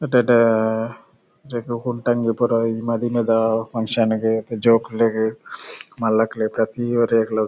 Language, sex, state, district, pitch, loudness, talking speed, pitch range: Tulu, male, Karnataka, Dakshina Kannada, 115 Hz, -20 LUFS, 105 wpm, 110-120 Hz